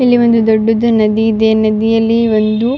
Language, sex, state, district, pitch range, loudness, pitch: Kannada, female, Karnataka, Raichur, 220-230 Hz, -12 LUFS, 225 Hz